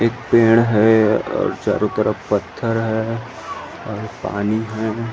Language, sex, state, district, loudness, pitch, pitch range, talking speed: Chhattisgarhi, male, Chhattisgarh, Rajnandgaon, -18 LUFS, 110 Hz, 105-115 Hz, 130 wpm